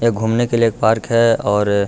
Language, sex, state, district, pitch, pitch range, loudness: Hindi, male, Bihar, Gaya, 115 Hz, 110-115 Hz, -16 LUFS